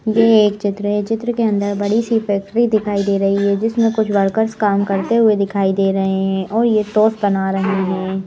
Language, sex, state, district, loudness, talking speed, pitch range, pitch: Hindi, female, Madhya Pradesh, Bhopal, -16 LUFS, 220 wpm, 195-220 Hz, 205 Hz